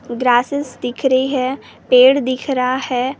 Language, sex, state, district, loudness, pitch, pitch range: Hindi, female, Maharashtra, Gondia, -16 LUFS, 255 Hz, 250-265 Hz